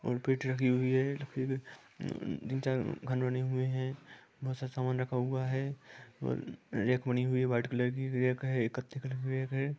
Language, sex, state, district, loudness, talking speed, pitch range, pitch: Hindi, male, Jharkhand, Sahebganj, -34 LUFS, 195 wpm, 125-130 Hz, 130 Hz